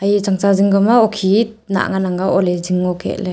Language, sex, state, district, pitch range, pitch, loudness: Wancho, female, Arunachal Pradesh, Longding, 185-205 Hz, 195 Hz, -16 LUFS